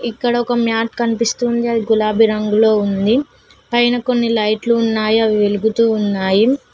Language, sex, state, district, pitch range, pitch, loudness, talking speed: Telugu, female, Telangana, Mahabubabad, 215-240 Hz, 225 Hz, -16 LUFS, 135 wpm